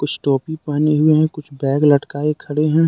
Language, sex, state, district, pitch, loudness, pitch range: Hindi, male, Jharkhand, Deoghar, 150 Hz, -17 LUFS, 145-155 Hz